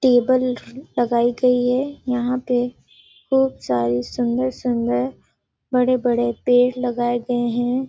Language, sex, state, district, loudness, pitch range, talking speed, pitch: Hindi, female, Chhattisgarh, Sarguja, -20 LUFS, 240-255 Hz, 105 wpm, 245 Hz